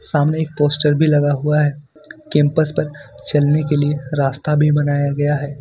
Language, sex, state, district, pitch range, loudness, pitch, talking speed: Hindi, male, Jharkhand, Ranchi, 145-150 Hz, -17 LUFS, 145 Hz, 180 wpm